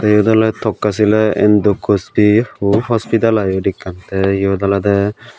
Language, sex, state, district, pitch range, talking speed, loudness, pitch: Chakma, male, Tripura, Dhalai, 100-110 Hz, 135 wpm, -14 LUFS, 105 Hz